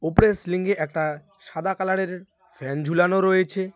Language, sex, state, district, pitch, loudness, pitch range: Bengali, male, West Bengal, Alipurduar, 185 Hz, -23 LUFS, 160-190 Hz